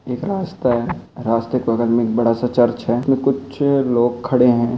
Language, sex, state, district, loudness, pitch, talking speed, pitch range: Hindi, male, Rajasthan, Churu, -18 LUFS, 125 Hz, 200 wpm, 120-135 Hz